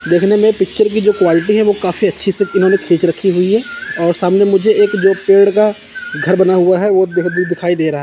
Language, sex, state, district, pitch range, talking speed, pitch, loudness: Hindi, male, Chandigarh, Chandigarh, 180-210 Hz, 245 wpm, 195 Hz, -13 LUFS